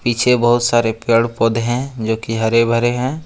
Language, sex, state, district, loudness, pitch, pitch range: Hindi, male, Jharkhand, Ranchi, -16 LUFS, 115 Hz, 115-120 Hz